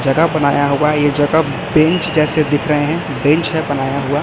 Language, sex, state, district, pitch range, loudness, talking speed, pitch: Hindi, male, Chhattisgarh, Raipur, 145-160 Hz, -15 LUFS, 200 wpm, 150 Hz